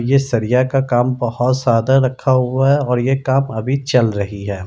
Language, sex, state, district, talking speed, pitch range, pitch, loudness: Hindi, male, Bihar, Madhepura, 205 wpm, 120-135 Hz, 125 Hz, -16 LUFS